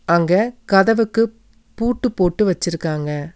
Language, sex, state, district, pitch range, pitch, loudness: Tamil, female, Tamil Nadu, Nilgiris, 170-225 Hz, 195 Hz, -18 LUFS